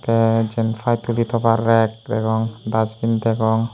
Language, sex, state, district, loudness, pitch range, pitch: Chakma, male, Tripura, Unakoti, -19 LUFS, 110-115 Hz, 115 Hz